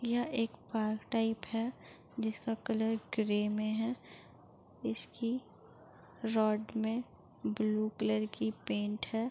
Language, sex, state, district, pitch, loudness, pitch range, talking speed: Hindi, female, Uttar Pradesh, Jalaun, 220 Hz, -36 LUFS, 215-230 Hz, 115 wpm